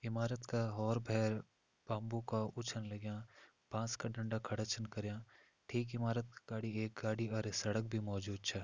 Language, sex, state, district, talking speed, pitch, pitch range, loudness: Hindi, male, Uttarakhand, Tehri Garhwal, 165 wpm, 110 Hz, 110-115 Hz, -41 LUFS